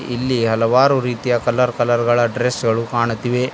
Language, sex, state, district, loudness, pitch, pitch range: Kannada, male, Karnataka, Bidar, -17 LUFS, 120 Hz, 115-125 Hz